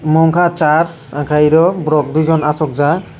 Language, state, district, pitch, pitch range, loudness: Kokborok, Tripura, Dhalai, 155 Hz, 150-165 Hz, -13 LUFS